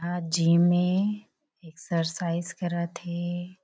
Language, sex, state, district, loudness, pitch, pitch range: Hindi, female, Chhattisgarh, Bilaspur, -27 LUFS, 175 Hz, 170-185 Hz